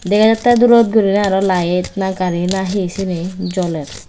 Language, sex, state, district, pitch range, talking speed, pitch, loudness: Chakma, female, Tripura, West Tripura, 180-205 Hz, 175 wpm, 190 Hz, -15 LUFS